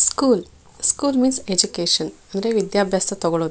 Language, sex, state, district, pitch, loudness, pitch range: Kannada, female, Karnataka, Shimoga, 200 Hz, -19 LUFS, 175-220 Hz